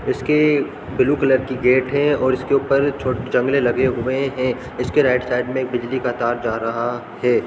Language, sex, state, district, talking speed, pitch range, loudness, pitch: Hindi, male, Bihar, Darbhanga, 200 wpm, 125-135 Hz, -19 LUFS, 130 Hz